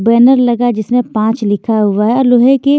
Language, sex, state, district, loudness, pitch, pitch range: Hindi, female, Maharashtra, Washim, -11 LUFS, 240 Hz, 215-250 Hz